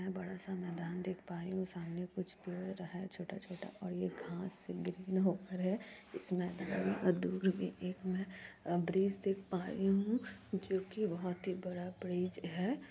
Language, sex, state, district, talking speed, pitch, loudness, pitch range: Hindi, female, Bihar, Kishanganj, 140 wpm, 185 Hz, -39 LUFS, 180-190 Hz